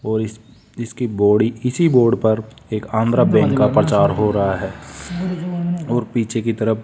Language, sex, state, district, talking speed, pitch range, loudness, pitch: Hindi, male, Rajasthan, Jaipur, 175 wpm, 110-125 Hz, -18 LUFS, 115 Hz